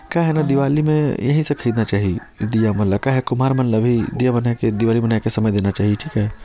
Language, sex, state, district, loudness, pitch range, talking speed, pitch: Chhattisgarhi, male, Chhattisgarh, Sarguja, -18 LUFS, 110-140 Hz, 270 wpm, 115 Hz